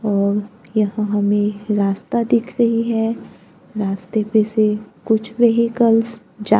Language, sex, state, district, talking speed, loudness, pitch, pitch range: Hindi, female, Maharashtra, Gondia, 120 wpm, -18 LUFS, 215 Hz, 205-230 Hz